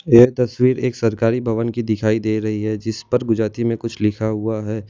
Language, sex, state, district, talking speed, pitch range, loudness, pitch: Hindi, male, Gujarat, Valsad, 210 wpm, 110-120 Hz, -19 LUFS, 115 Hz